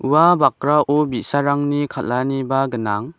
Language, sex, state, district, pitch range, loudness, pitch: Garo, male, Meghalaya, West Garo Hills, 130-145 Hz, -18 LUFS, 140 Hz